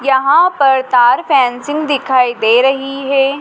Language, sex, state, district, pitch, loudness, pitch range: Hindi, female, Madhya Pradesh, Dhar, 270 Hz, -12 LUFS, 255-280 Hz